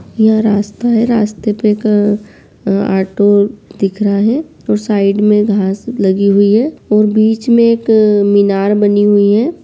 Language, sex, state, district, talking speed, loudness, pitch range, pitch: Hindi, female, Bihar, Begusarai, 170 wpm, -12 LUFS, 200-220 Hz, 210 Hz